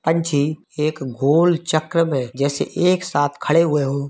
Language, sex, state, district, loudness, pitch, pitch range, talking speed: Hindi, male, Uttar Pradesh, Varanasi, -19 LUFS, 155 Hz, 140-165 Hz, 160 wpm